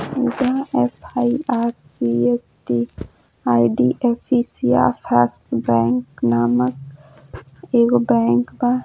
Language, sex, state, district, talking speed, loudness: Bhojpuri, female, Uttar Pradesh, Gorakhpur, 60 wpm, -19 LUFS